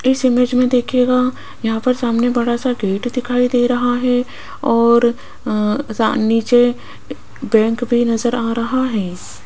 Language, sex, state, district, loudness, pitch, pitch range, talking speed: Hindi, female, Rajasthan, Jaipur, -16 LUFS, 245 Hz, 230-250 Hz, 140 wpm